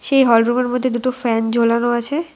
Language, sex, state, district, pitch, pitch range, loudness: Bengali, female, West Bengal, Alipurduar, 245 Hz, 235-255 Hz, -17 LUFS